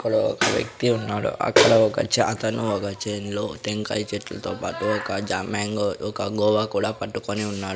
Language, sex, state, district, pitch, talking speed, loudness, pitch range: Telugu, male, Andhra Pradesh, Sri Satya Sai, 105 Hz, 170 wpm, -23 LUFS, 100-110 Hz